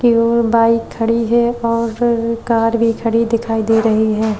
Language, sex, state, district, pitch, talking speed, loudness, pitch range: Hindi, female, Uttar Pradesh, Jyotiba Phule Nagar, 230 Hz, 180 wpm, -15 LUFS, 225-230 Hz